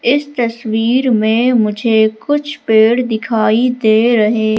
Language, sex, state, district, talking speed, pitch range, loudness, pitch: Hindi, female, Madhya Pradesh, Katni, 115 wpm, 220-250 Hz, -13 LUFS, 230 Hz